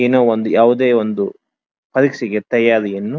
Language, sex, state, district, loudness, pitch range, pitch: Kannada, male, Karnataka, Dharwad, -16 LUFS, 110-125 Hz, 115 Hz